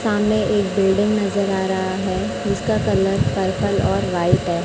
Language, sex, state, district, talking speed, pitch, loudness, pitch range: Hindi, male, Chhattisgarh, Raipur, 170 wpm, 190 Hz, -19 LUFS, 185-200 Hz